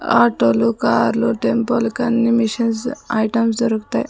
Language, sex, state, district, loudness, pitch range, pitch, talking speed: Telugu, female, Andhra Pradesh, Sri Satya Sai, -17 LUFS, 220-235 Hz, 230 Hz, 160 wpm